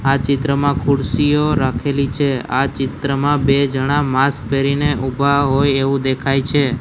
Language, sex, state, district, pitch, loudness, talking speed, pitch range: Gujarati, male, Gujarat, Gandhinagar, 140 Hz, -17 LUFS, 140 wpm, 135-140 Hz